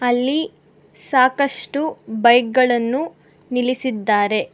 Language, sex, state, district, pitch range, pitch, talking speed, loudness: Kannada, female, Karnataka, Bangalore, 235-280 Hz, 250 Hz, 65 wpm, -18 LUFS